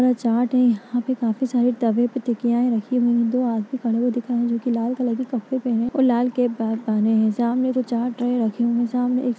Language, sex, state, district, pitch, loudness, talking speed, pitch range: Hindi, female, Uttar Pradesh, Etah, 240 Hz, -21 LUFS, 245 wpm, 235-250 Hz